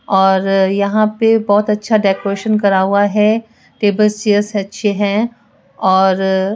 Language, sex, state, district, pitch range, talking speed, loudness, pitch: Hindi, female, Rajasthan, Jaipur, 195-210 Hz, 135 wpm, -14 LUFS, 205 Hz